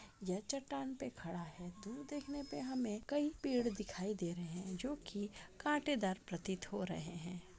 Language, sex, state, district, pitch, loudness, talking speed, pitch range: Hindi, female, Goa, North and South Goa, 210 Hz, -42 LUFS, 175 wpm, 180-275 Hz